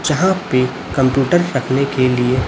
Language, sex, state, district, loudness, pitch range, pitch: Hindi, male, Chhattisgarh, Raipur, -16 LUFS, 130-150 Hz, 135 Hz